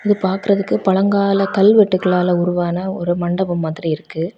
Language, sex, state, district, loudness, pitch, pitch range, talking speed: Tamil, female, Tamil Nadu, Kanyakumari, -17 LUFS, 185 Hz, 175-195 Hz, 125 wpm